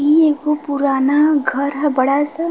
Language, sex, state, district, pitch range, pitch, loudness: Bhojpuri, female, Uttar Pradesh, Varanasi, 280-300 Hz, 290 Hz, -15 LUFS